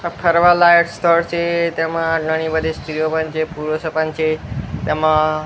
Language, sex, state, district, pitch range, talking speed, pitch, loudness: Gujarati, male, Gujarat, Gandhinagar, 155-170 Hz, 165 wpm, 160 Hz, -17 LUFS